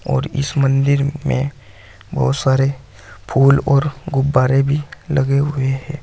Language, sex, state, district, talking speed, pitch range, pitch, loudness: Hindi, male, Uttar Pradesh, Saharanpur, 130 wpm, 130-140 Hz, 135 Hz, -17 LUFS